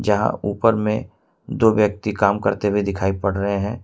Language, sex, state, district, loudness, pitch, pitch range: Hindi, male, Jharkhand, Ranchi, -20 LUFS, 105 Hz, 100-105 Hz